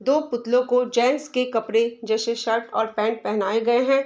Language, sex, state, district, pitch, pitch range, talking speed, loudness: Hindi, female, Bihar, Saharsa, 235 Hz, 225-250 Hz, 190 wpm, -22 LUFS